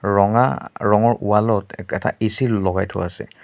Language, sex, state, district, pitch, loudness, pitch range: Assamese, male, Assam, Sonitpur, 105 Hz, -19 LUFS, 100-110 Hz